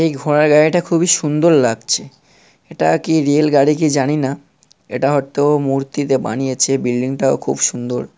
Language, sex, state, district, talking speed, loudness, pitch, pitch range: Bengali, male, West Bengal, North 24 Parganas, 145 wpm, -15 LUFS, 145 Hz, 135-155 Hz